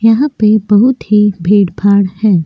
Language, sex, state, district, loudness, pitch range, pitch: Hindi, female, Uttar Pradesh, Jyotiba Phule Nagar, -11 LUFS, 200-215 Hz, 205 Hz